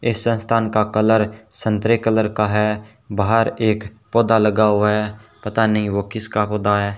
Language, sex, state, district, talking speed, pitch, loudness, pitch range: Hindi, male, Rajasthan, Bikaner, 170 wpm, 110 Hz, -19 LUFS, 105-110 Hz